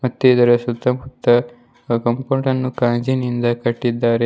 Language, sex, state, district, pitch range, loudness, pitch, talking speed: Kannada, male, Karnataka, Bidar, 120-130 Hz, -18 LUFS, 120 Hz, 115 wpm